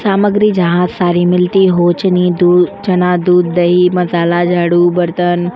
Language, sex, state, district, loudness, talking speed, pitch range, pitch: Hindi, female, Uttar Pradesh, Jyotiba Phule Nagar, -11 LUFS, 140 wpm, 175-180 Hz, 180 Hz